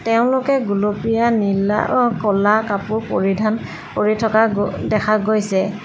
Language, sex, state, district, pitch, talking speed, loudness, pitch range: Assamese, female, Assam, Sonitpur, 215 Hz, 125 wpm, -18 LUFS, 205-225 Hz